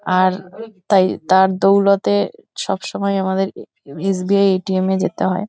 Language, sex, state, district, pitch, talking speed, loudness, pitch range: Bengali, female, West Bengal, Kolkata, 190 Hz, 130 wpm, -17 LUFS, 185-195 Hz